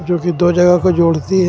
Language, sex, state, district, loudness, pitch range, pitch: Hindi, male, Jharkhand, Ranchi, -13 LUFS, 170-180 Hz, 175 Hz